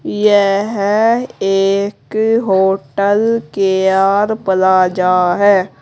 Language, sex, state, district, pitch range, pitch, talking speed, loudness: Hindi, female, Uttar Pradesh, Saharanpur, 190-210 Hz, 200 Hz, 70 wpm, -13 LUFS